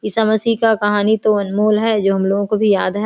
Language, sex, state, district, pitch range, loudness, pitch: Hindi, female, Bihar, Samastipur, 205-220 Hz, -16 LUFS, 210 Hz